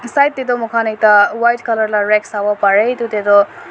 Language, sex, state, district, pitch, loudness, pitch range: Nagamese, female, Nagaland, Dimapur, 220 Hz, -14 LUFS, 205-235 Hz